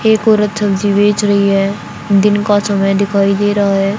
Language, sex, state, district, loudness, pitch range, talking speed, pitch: Hindi, female, Haryana, Charkhi Dadri, -13 LUFS, 200-205 Hz, 195 wpm, 205 Hz